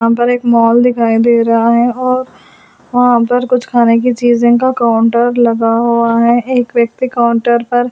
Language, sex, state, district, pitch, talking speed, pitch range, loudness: Hindi, female, Delhi, New Delhi, 235 Hz, 180 wpm, 235-245 Hz, -11 LUFS